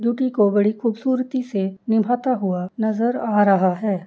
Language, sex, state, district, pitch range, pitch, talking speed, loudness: Hindi, female, Uttar Pradesh, Jyotiba Phule Nagar, 200-245 Hz, 220 Hz, 160 wpm, -20 LUFS